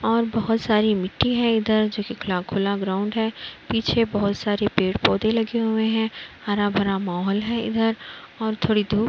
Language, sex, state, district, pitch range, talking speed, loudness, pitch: Hindi, female, Uttar Pradesh, Budaun, 200-225 Hz, 200 wpm, -23 LUFS, 215 Hz